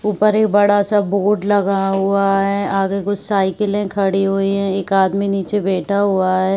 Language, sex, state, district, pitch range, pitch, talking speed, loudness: Hindi, female, Uttar Pradesh, Varanasi, 195-205 Hz, 195 Hz, 185 wpm, -17 LUFS